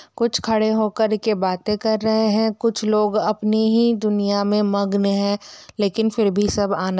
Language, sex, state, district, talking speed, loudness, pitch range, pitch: Hindi, female, Bihar, Muzaffarpur, 180 wpm, -20 LUFS, 205-220 Hz, 215 Hz